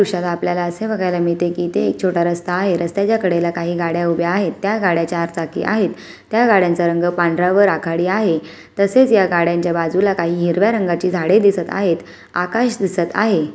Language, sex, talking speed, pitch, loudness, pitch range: Marathi, female, 190 wpm, 175 Hz, -17 LUFS, 170-200 Hz